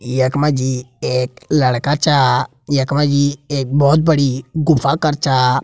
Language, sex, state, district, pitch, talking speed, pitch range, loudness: Garhwali, male, Uttarakhand, Tehri Garhwal, 140 Hz, 140 wpm, 130-150 Hz, -16 LUFS